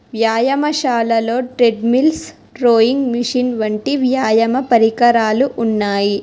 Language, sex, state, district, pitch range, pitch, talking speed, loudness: Telugu, female, Telangana, Hyderabad, 225-260 Hz, 235 Hz, 75 wpm, -15 LUFS